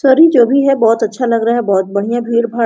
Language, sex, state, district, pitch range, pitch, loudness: Hindi, female, Jharkhand, Sahebganj, 225-255 Hz, 235 Hz, -12 LUFS